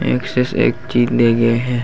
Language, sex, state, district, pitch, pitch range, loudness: Chhattisgarhi, male, Chhattisgarh, Bastar, 120 Hz, 115-125 Hz, -16 LUFS